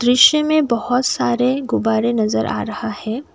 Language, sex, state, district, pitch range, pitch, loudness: Hindi, female, Assam, Kamrup Metropolitan, 225-255 Hz, 245 Hz, -17 LUFS